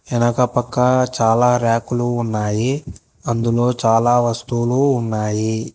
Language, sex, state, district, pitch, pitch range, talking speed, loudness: Telugu, male, Telangana, Hyderabad, 120 Hz, 115-125 Hz, 95 wpm, -18 LUFS